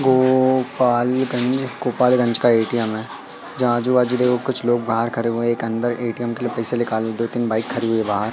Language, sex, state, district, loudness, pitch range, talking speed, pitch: Hindi, male, Madhya Pradesh, Katni, -19 LUFS, 115-125 Hz, 225 wpm, 120 Hz